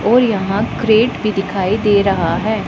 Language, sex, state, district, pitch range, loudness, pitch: Hindi, female, Punjab, Pathankot, 195-220 Hz, -15 LUFS, 210 Hz